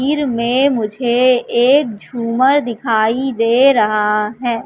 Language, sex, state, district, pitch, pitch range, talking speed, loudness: Hindi, female, Madhya Pradesh, Katni, 240 Hz, 230-265 Hz, 115 wpm, -15 LUFS